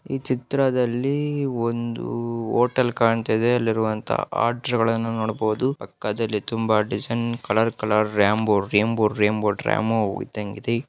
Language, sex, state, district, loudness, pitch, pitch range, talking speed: Kannada, male, Karnataka, Bellary, -23 LUFS, 115 Hz, 110-120 Hz, 105 wpm